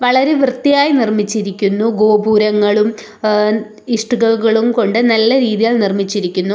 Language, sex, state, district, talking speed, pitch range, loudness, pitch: Malayalam, female, Kerala, Kollam, 90 wpm, 210-235 Hz, -14 LUFS, 220 Hz